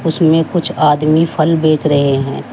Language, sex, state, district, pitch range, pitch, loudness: Hindi, female, Uttar Pradesh, Shamli, 150-165 Hz, 155 Hz, -13 LUFS